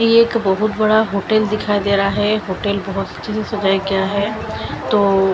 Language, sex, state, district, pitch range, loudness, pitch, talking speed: Hindi, female, Chandigarh, Chandigarh, 195-215 Hz, -17 LUFS, 205 Hz, 135 wpm